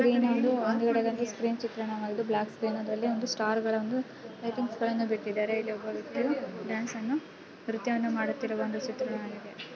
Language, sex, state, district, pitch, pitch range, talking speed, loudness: Kannada, female, Karnataka, Raichur, 230 Hz, 220-240 Hz, 125 wpm, -31 LUFS